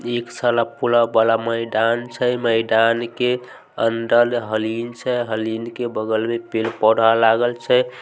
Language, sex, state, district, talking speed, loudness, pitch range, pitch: Maithili, male, Bihar, Samastipur, 135 wpm, -19 LUFS, 115-120 Hz, 115 Hz